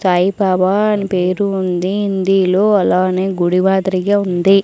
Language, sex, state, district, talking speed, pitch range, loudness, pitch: Telugu, female, Andhra Pradesh, Sri Satya Sai, 105 wpm, 185-195 Hz, -15 LUFS, 190 Hz